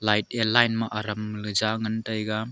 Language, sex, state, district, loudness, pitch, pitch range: Wancho, male, Arunachal Pradesh, Longding, -25 LUFS, 110 Hz, 105-110 Hz